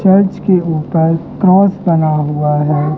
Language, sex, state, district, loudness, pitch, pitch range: Hindi, male, Madhya Pradesh, Katni, -13 LUFS, 165 Hz, 150-190 Hz